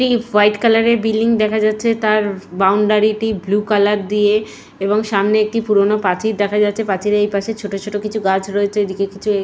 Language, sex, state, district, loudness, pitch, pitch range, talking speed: Bengali, female, West Bengal, Purulia, -16 LUFS, 210 Hz, 200-215 Hz, 180 wpm